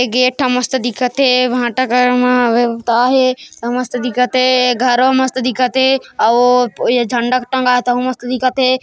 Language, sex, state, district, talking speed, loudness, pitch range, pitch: Hindi, female, Chhattisgarh, Kabirdham, 150 wpm, -14 LUFS, 245-255 Hz, 250 Hz